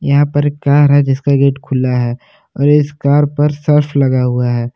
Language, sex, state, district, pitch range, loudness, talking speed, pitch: Hindi, male, Jharkhand, Palamu, 130-145 Hz, -13 LUFS, 215 wpm, 140 Hz